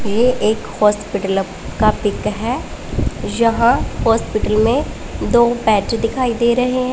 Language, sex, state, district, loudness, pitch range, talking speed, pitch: Hindi, female, Punjab, Pathankot, -17 LUFS, 210-240 Hz, 130 wpm, 230 Hz